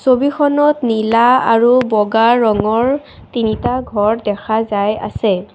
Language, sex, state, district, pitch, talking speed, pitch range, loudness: Assamese, female, Assam, Kamrup Metropolitan, 230 Hz, 110 wpm, 215-250 Hz, -14 LUFS